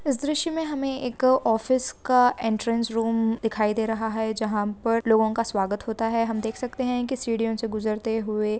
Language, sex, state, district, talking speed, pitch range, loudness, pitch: Hindi, female, Andhra Pradesh, Guntur, 195 wpm, 220-250 Hz, -25 LUFS, 225 Hz